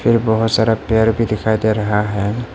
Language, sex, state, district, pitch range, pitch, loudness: Hindi, male, Arunachal Pradesh, Papum Pare, 105-115 Hz, 110 Hz, -16 LUFS